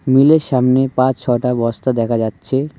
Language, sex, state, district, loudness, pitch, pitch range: Bengali, male, West Bengal, Cooch Behar, -15 LUFS, 130 Hz, 120-135 Hz